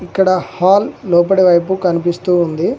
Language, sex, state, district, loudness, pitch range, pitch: Telugu, male, Telangana, Mahabubabad, -14 LUFS, 175-190 Hz, 180 Hz